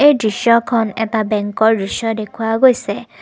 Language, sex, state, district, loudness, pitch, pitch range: Assamese, female, Assam, Kamrup Metropolitan, -16 LUFS, 225 Hz, 215-235 Hz